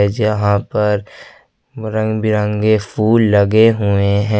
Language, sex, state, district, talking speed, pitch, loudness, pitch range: Hindi, male, Jharkhand, Ranchi, 110 wpm, 105 Hz, -15 LUFS, 105-110 Hz